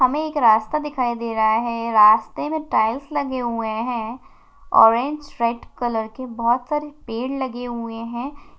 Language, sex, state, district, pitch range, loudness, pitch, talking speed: Hindi, female, Maharashtra, Chandrapur, 230-285 Hz, -21 LUFS, 240 Hz, 160 wpm